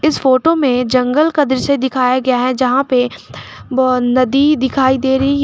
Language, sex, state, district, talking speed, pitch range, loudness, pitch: Hindi, female, Jharkhand, Garhwa, 175 wpm, 255-280 Hz, -14 LUFS, 260 Hz